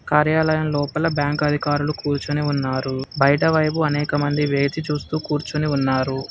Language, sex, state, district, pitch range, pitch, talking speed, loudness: Telugu, male, Telangana, Hyderabad, 140-150 Hz, 145 Hz, 125 wpm, -21 LUFS